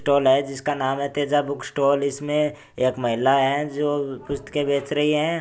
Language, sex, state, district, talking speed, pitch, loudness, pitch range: Hindi, male, Rajasthan, Churu, 190 wpm, 140 Hz, -22 LUFS, 135-145 Hz